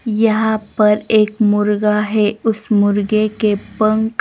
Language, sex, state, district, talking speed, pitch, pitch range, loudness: Hindi, female, Bihar, West Champaran, 130 wpm, 215 Hz, 210-220 Hz, -15 LUFS